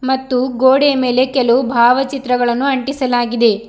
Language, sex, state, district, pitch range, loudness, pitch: Kannada, female, Karnataka, Bidar, 240-265 Hz, -14 LUFS, 255 Hz